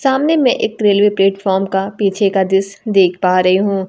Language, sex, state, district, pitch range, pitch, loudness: Hindi, female, Bihar, Kaimur, 190-210 Hz, 195 Hz, -14 LUFS